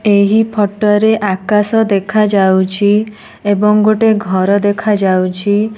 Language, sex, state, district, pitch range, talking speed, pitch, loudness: Odia, female, Odisha, Nuapada, 200-215 Hz, 115 wpm, 205 Hz, -12 LUFS